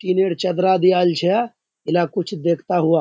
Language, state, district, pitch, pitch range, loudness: Surjapuri, Bihar, Kishanganj, 180 Hz, 170-185 Hz, -19 LUFS